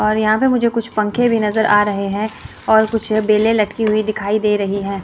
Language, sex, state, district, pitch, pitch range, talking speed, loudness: Hindi, female, Chandigarh, Chandigarh, 215 Hz, 210-220 Hz, 240 wpm, -16 LUFS